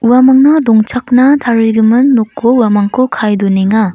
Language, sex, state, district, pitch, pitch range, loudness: Garo, female, Meghalaya, North Garo Hills, 235 Hz, 215-255 Hz, -9 LUFS